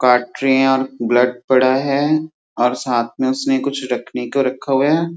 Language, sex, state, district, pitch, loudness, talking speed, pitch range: Hindi, male, Uttar Pradesh, Muzaffarnagar, 130 Hz, -17 LUFS, 160 wpm, 125-140 Hz